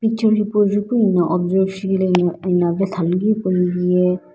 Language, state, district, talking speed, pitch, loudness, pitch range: Sumi, Nagaland, Dimapur, 195 wpm, 185 Hz, -18 LUFS, 180-205 Hz